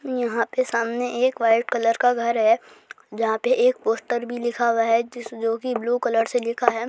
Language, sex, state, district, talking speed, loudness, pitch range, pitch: Hindi, female, Rajasthan, Churu, 200 wpm, -22 LUFS, 230-245 Hz, 240 Hz